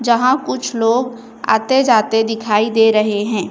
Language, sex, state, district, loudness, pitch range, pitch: Hindi, female, Chhattisgarh, Raipur, -15 LUFS, 215-240 Hz, 225 Hz